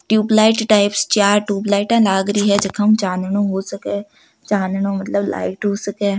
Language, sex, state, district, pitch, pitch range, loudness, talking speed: Marwari, female, Rajasthan, Nagaur, 200 Hz, 195-205 Hz, -17 LUFS, 165 wpm